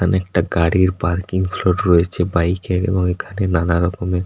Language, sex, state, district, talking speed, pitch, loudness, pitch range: Bengali, male, West Bengal, Paschim Medinipur, 170 wpm, 90 Hz, -18 LUFS, 85-95 Hz